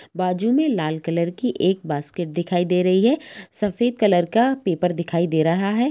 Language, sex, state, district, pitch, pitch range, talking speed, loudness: Hindi, female, Jharkhand, Sahebganj, 180 Hz, 170-230 Hz, 190 wpm, -21 LUFS